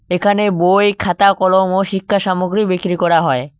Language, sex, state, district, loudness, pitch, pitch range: Bengali, male, West Bengal, Cooch Behar, -14 LUFS, 185 Hz, 180-200 Hz